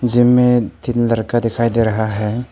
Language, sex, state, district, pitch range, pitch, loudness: Hindi, male, Arunachal Pradesh, Papum Pare, 110-120 Hz, 115 Hz, -16 LUFS